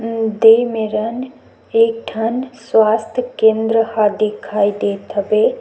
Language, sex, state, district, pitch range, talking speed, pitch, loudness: Chhattisgarhi, female, Chhattisgarh, Sukma, 215-240 Hz, 130 wpm, 225 Hz, -16 LUFS